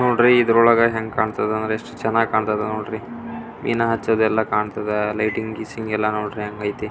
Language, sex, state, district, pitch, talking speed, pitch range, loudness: Kannada, male, Karnataka, Belgaum, 110 Hz, 175 wpm, 105-115 Hz, -20 LUFS